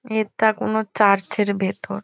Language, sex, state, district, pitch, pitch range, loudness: Bengali, female, West Bengal, Kolkata, 210 Hz, 200-220 Hz, -20 LUFS